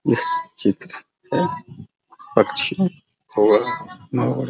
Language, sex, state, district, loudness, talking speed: Hindi, male, Bihar, Araria, -21 LUFS, 95 wpm